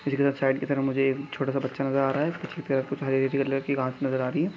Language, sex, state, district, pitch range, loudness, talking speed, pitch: Hindi, male, Chhattisgarh, Jashpur, 135-140 Hz, -27 LUFS, 195 wpm, 135 Hz